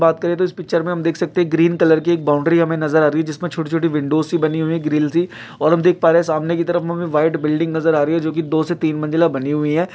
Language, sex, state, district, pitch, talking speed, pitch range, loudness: Hindi, male, Uttar Pradesh, Etah, 165 Hz, 320 wpm, 155-170 Hz, -17 LUFS